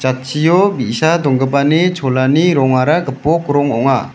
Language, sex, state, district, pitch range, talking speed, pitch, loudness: Garo, male, Meghalaya, West Garo Hills, 130-165 Hz, 115 wpm, 145 Hz, -14 LUFS